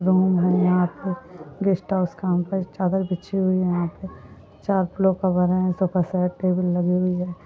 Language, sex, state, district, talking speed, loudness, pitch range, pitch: Hindi, female, Chhattisgarh, Balrampur, 120 wpm, -22 LUFS, 180-185 Hz, 180 Hz